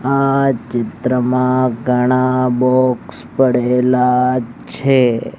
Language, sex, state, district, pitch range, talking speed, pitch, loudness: Gujarati, male, Gujarat, Gandhinagar, 125-130 Hz, 65 wpm, 125 Hz, -15 LUFS